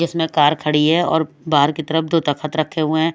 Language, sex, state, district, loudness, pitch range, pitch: Hindi, female, Odisha, Malkangiri, -18 LUFS, 150-160 Hz, 155 Hz